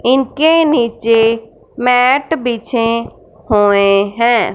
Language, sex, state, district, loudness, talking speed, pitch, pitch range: Hindi, female, Punjab, Fazilka, -13 LUFS, 80 wpm, 235 Hz, 225-260 Hz